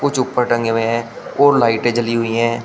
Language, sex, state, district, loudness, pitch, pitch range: Hindi, male, Uttar Pradesh, Shamli, -16 LUFS, 115 Hz, 115-125 Hz